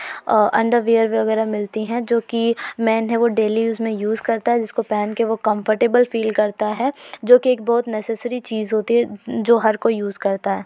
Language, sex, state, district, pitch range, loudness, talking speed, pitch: Hindi, female, Uttar Pradesh, Varanasi, 215-235 Hz, -19 LUFS, 220 wpm, 225 Hz